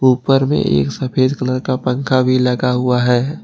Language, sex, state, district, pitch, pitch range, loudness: Hindi, male, Jharkhand, Ranchi, 130 Hz, 125-130 Hz, -16 LUFS